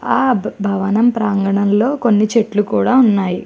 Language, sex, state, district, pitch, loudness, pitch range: Telugu, female, Andhra Pradesh, Chittoor, 210 Hz, -15 LUFS, 200-230 Hz